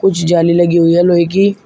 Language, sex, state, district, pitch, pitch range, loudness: Hindi, male, Uttar Pradesh, Shamli, 175 Hz, 170-195 Hz, -11 LUFS